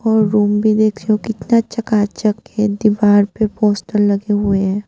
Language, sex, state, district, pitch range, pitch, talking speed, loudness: Hindi, female, Tripura, Unakoti, 205-215 Hz, 210 Hz, 185 wpm, -16 LUFS